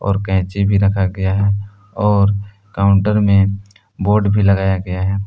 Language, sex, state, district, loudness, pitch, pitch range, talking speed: Hindi, male, Jharkhand, Palamu, -16 LUFS, 100 Hz, 95-100 Hz, 160 wpm